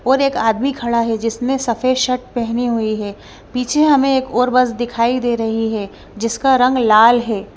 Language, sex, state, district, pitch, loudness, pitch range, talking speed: Hindi, female, Punjab, Kapurthala, 240 Hz, -16 LUFS, 225-255 Hz, 190 wpm